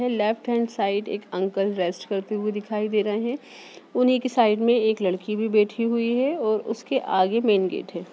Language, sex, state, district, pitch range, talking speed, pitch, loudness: Hindi, female, Bihar, Sitamarhi, 205-235 Hz, 215 wpm, 215 Hz, -24 LUFS